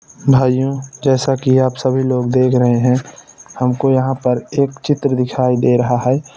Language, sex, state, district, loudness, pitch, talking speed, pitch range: Hindi, male, Uttar Pradesh, Etah, -15 LUFS, 130 Hz, 170 wpm, 125-135 Hz